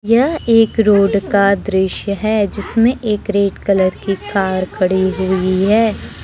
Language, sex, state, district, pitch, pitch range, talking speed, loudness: Hindi, female, Jharkhand, Deoghar, 200 Hz, 190-215 Hz, 145 wpm, -15 LUFS